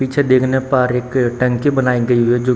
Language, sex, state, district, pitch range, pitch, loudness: Hindi, male, Bihar, Samastipur, 125-130 Hz, 125 Hz, -15 LUFS